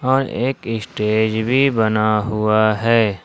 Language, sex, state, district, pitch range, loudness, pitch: Hindi, male, Jharkhand, Ranchi, 110-120 Hz, -18 LUFS, 110 Hz